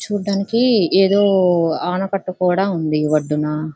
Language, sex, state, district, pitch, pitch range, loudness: Telugu, female, Andhra Pradesh, Visakhapatnam, 185 Hz, 155-195 Hz, -17 LUFS